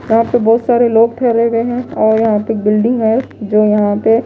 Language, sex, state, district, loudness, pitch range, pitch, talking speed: Hindi, female, Himachal Pradesh, Shimla, -13 LUFS, 215-240 Hz, 225 Hz, 240 wpm